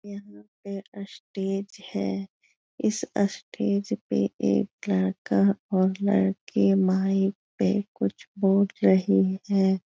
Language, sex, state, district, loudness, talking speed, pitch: Hindi, female, Bihar, Supaul, -25 LUFS, 105 wpm, 195 Hz